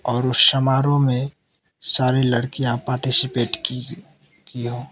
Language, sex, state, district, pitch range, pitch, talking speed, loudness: Hindi, male, Mizoram, Aizawl, 125-140 Hz, 130 Hz, 145 wpm, -19 LUFS